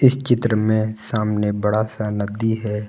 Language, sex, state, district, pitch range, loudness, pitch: Hindi, male, Jharkhand, Garhwa, 105-110 Hz, -20 LUFS, 110 Hz